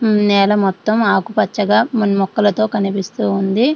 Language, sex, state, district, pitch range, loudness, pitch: Telugu, female, Andhra Pradesh, Srikakulam, 195-220 Hz, -16 LUFS, 210 Hz